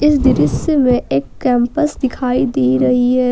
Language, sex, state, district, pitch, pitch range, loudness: Hindi, female, Jharkhand, Ranchi, 250 Hz, 240-270 Hz, -15 LUFS